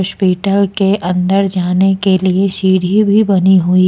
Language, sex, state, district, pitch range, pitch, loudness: Hindi, female, Jharkhand, Ranchi, 185-195 Hz, 190 Hz, -12 LUFS